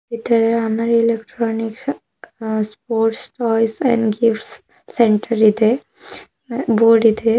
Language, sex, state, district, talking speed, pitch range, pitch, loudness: Kannada, female, Karnataka, Bidar, 90 wpm, 225-235 Hz, 230 Hz, -17 LUFS